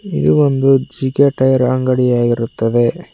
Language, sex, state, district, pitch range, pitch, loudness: Kannada, male, Karnataka, Koppal, 120-135 Hz, 130 Hz, -14 LUFS